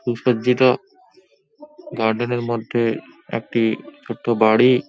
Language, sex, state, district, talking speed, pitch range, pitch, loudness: Bengali, male, West Bengal, Paschim Medinipur, 85 wpm, 115-130 Hz, 120 Hz, -20 LUFS